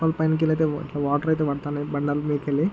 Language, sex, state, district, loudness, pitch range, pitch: Telugu, male, Andhra Pradesh, Guntur, -24 LUFS, 145-160 Hz, 150 Hz